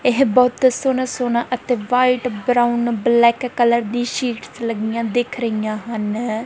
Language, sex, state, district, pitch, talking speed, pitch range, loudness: Punjabi, female, Punjab, Kapurthala, 240 Hz, 140 wpm, 230-250 Hz, -18 LUFS